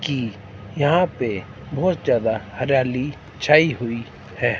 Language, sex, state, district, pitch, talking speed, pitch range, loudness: Hindi, male, Himachal Pradesh, Shimla, 125 Hz, 120 wpm, 110-145 Hz, -21 LUFS